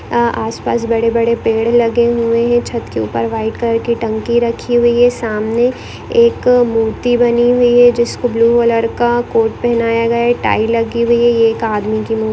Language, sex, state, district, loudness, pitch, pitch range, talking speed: Hindi, female, Rajasthan, Nagaur, -14 LUFS, 235 Hz, 225-240 Hz, 205 wpm